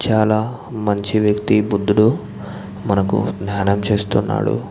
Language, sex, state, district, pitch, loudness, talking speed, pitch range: Telugu, male, Andhra Pradesh, Visakhapatnam, 105 Hz, -18 LUFS, 90 wpm, 100-110 Hz